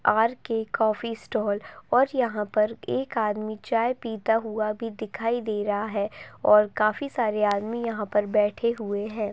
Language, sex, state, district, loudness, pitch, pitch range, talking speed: Hindi, female, Uttar Pradesh, Budaun, -26 LUFS, 220 Hz, 210-230 Hz, 160 wpm